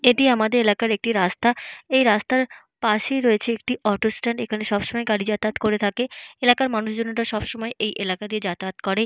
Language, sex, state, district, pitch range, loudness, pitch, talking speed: Bengali, female, Jharkhand, Jamtara, 210-240 Hz, -22 LUFS, 220 Hz, 180 wpm